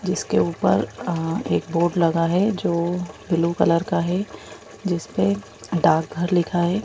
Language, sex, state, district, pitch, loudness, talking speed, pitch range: Hindi, female, Madhya Pradesh, Bhopal, 170 Hz, -22 LUFS, 150 wpm, 165-180 Hz